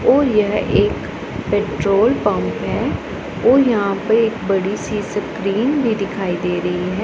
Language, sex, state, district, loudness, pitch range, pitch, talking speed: Hindi, female, Punjab, Pathankot, -18 LUFS, 195-225 Hz, 205 Hz, 155 wpm